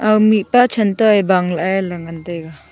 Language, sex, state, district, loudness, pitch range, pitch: Wancho, female, Arunachal Pradesh, Longding, -15 LUFS, 175-215 Hz, 195 Hz